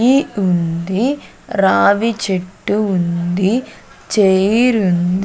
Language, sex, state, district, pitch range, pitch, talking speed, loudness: Telugu, female, Andhra Pradesh, Sri Satya Sai, 180-225 Hz, 195 Hz, 80 wpm, -16 LUFS